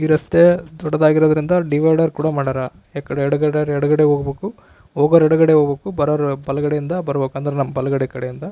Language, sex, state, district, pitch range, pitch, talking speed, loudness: Kannada, male, Karnataka, Raichur, 140-155 Hz, 150 Hz, 140 wpm, -17 LUFS